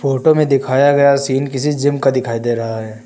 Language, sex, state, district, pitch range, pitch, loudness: Hindi, male, Uttar Pradesh, Lucknow, 120-140 Hz, 135 Hz, -15 LUFS